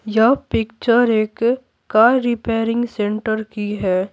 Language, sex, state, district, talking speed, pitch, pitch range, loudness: Hindi, female, Bihar, Patna, 115 wpm, 225 Hz, 215-240 Hz, -18 LUFS